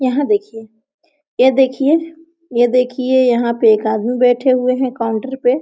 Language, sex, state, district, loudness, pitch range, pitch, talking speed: Hindi, female, Jharkhand, Sahebganj, -15 LUFS, 235-270 Hz, 255 Hz, 160 wpm